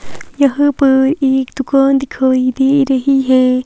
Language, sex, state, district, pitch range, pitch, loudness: Hindi, female, Himachal Pradesh, Shimla, 260-275 Hz, 270 Hz, -13 LUFS